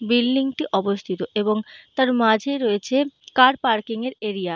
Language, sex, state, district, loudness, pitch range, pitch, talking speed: Bengali, female, Jharkhand, Jamtara, -21 LUFS, 210-260 Hz, 225 Hz, 160 wpm